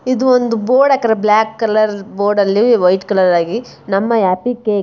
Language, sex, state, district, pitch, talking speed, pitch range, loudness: Kannada, female, Karnataka, Bijapur, 215 Hz, 150 wpm, 200-240 Hz, -14 LUFS